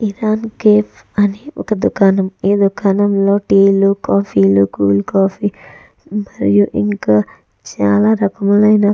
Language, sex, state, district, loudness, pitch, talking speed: Telugu, female, Andhra Pradesh, Chittoor, -14 LUFS, 195 Hz, 125 wpm